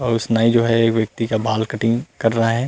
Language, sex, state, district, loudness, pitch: Chhattisgarhi, male, Chhattisgarh, Rajnandgaon, -18 LUFS, 115 Hz